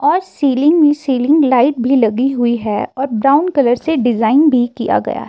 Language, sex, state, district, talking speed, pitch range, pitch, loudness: Hindi, female, Himachal Pradesh, Shimla, 180 wpm, 245-295 Hz, 270 Hz, -14 LUFS